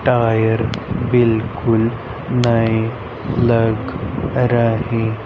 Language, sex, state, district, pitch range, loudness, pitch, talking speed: Hindi, male, Haryana, Rohtak, 110-120 Hz, -18 LUFS, 115 Hz, 55 wpm